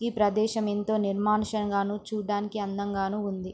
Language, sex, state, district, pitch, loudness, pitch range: Telugu, female, Andhra Pradesh, Srikakulam, 205 Hz, -28 LUFS, 200-215 Hz